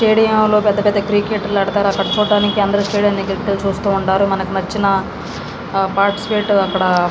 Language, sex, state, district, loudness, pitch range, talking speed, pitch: Telugu, female, Andhra Pradesh, Srikakulam, -16 LUFS, 195-205 Hz, 170 wpm, 200 Hz